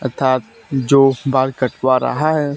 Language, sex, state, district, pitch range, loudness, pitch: Hindi, male, Haryana, Charkhi Dadri, 130-140 Hz, -16 LUFS, 135 Hz